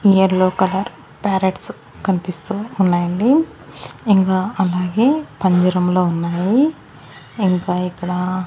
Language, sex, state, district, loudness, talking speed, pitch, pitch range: Telugu, female, Andhra Pradesh, Annamaya, -18 LUFS, 85 wpm, 185 Hz, 180-200 Hz